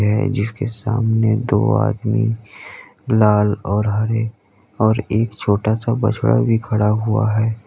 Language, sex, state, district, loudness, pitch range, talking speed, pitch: Hindi, male, Uttar Pradesh, Lalitpur, -18 LUFS, 105-115 Hz, 125 wpm, 110 Hz